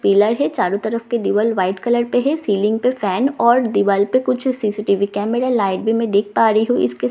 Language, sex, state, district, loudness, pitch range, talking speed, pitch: Hindi, female, Bihar, Katihar, -17 LUFS, 200-245 Hz, 245 wpm, 220 Hz